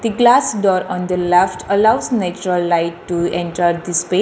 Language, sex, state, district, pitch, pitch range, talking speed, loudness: English, female, Telangana, Hyderabad, 180 Hz, 175-210 Hz, 200 wpm, -16 LUFS